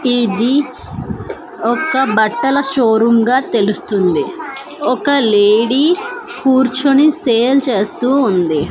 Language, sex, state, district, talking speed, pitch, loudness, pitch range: Telugu, female, Andhra Pradesh, Manyam, 90 wpm, 250 Hz, -14 LUFS, 220-275 Hz